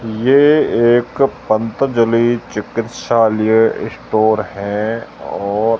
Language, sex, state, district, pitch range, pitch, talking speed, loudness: Hindi, male, Rajasthan, Jaisalmer, 110-120 Hz, 115 Hz, 70 wpm, -15 LUFS